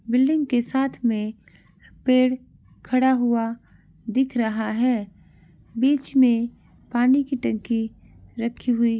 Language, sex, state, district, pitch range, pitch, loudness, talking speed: Angika, male, Bihar, Madhepura, 225-255 Hz, 240 Hz, -23 LUFS, 120 wpm